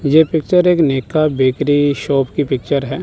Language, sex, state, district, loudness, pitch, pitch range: Hindi, male, Chandigarh, Chandigarh, -15 LUFS, 145 Hz, 135-160 Hz